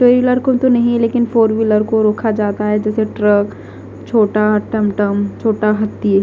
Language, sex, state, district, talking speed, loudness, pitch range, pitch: Hindi, female, Punjab, Fazilka, 185 wpm, -15 LUFS, 210-230 Hz, 215 Hz